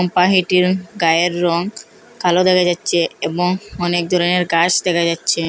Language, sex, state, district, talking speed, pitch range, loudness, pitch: Bengali, female, Assam, Hailakandi, 130 wpm, 170-185 Hz, -16 LUFS, 180 Hz